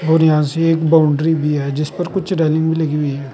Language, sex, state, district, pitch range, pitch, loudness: Hindi, male, Uttar Pradesh, Saharanpur, 150-160 Hz, 160 Hz, -16 LUFS